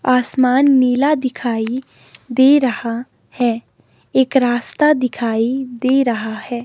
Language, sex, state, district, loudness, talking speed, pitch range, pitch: Hindi, female, Himachal Pradesh, Shimla, -16 LUFS, 110 wpm, 240-265 Hz, 250 Hz